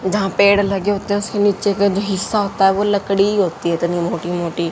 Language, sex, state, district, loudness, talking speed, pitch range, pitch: Hindi, female, Haryana, Jhajjar, -17 LUFS, 265 wpm, 175-205 Hz, 195 Hz